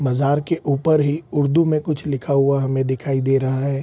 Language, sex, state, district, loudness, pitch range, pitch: Hindi, male, Bihar, Sitamarhi, -19 LUFS, 135-150 Hz, 140 Hz